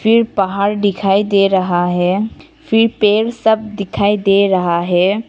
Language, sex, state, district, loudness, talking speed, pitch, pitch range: Hindi, female, Arunachal Pradesh, Papum Pare, -15 LUFS, 145 wpm, 200 Hz, 190-220 Hz